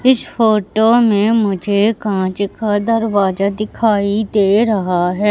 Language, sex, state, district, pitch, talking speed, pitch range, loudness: Hindi, female, Madhya Pradesh, Katni, 210 Hz, 125 wpm, 200-220 Hz, -15 LUFS